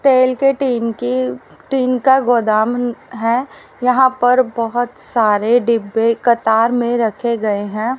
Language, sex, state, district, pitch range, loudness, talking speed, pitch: Hindi, female, Haryana, Rohtak, 225-255 Hz, -16 LUFS, 135 wpm, 240 Hz